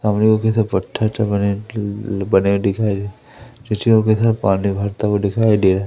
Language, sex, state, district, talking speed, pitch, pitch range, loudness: Hindi, male, Madhya Pradesh, Umaria, 215 wpm, 105 Hz, 100-110 Hz, -18 LUFS